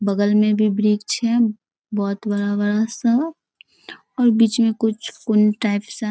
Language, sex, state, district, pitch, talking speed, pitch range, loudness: Hindi, female, Bihar, Bhagalpur, 215 Hz, 155 wpm, 205-230 Hz, -19 LUFS